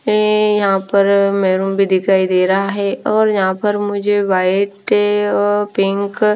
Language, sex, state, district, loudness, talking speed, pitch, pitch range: Hindi, female, Punjab, Fazilka, -15 LUFS, 160 wpm, 200 Hz, 195-205 Hz